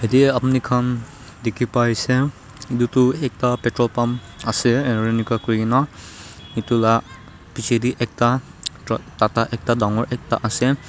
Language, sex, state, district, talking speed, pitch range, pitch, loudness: Nagamese, male, Nagaland, Dimapur, 150 wpm, 115-125 Hz, 120 Hz, -20 LUFS